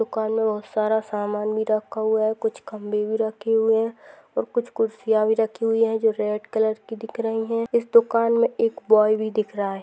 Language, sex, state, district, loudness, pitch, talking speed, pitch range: Hindi, female, Maharashtra, Dhule, -23 LUFS, 220 Hz, 230 wpm, 215-225 Hz